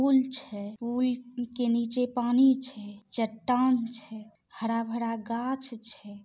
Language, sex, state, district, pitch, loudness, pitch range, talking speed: Maithili, female, Bihar, Samastipur, 235 Hz, -29 LUFS, 220-250 Hz, 115 wpm